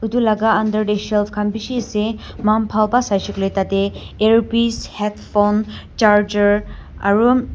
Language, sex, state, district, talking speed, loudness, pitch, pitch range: Nagamese, female, Nagaland, Dimapur, 150 wpm, -18 LUFS, 215 Hz, 205-220 Hz